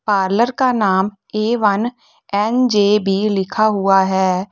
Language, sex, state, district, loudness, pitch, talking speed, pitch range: Hindi, female, Uttar Pradesh, Lalitpur, -16 LUFS, 205 Hz, 105 wpm, 195-225 Hz